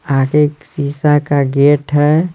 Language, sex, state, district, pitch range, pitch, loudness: Hindi, male, Bihar, Patna, 140-150 Hz, 145 Hz, -13 LUFS